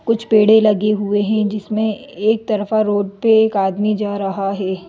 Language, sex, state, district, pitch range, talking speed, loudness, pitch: Hindi, female, Madhya Pradesh, Bhopal, 205-220 Hz, 185 wpm, -16 LUFS, 210 Hz